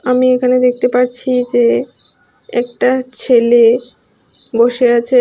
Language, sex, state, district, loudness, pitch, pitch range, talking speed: Bengali, female, Tripura, West Tripura, -13 LUFS, 250 Hz, 240-255 Hz, 105 wpm